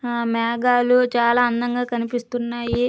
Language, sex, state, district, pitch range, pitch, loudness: Telugu, female, Andhra Pradesh, Krishna, 235-245 Hz, 240 Hz, -20 LUFS